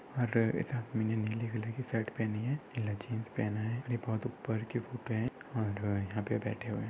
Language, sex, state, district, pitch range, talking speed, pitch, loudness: Hindi, male, Maharashtra, Nagpur, 110-120 Hz, 225 wpm, 110 Hz, -36 LUFS